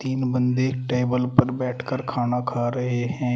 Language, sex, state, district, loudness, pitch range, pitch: Hindi, male, Uttar Pradesh, Shamli, -24 LUFS, 125-130 Hz, 125 Hz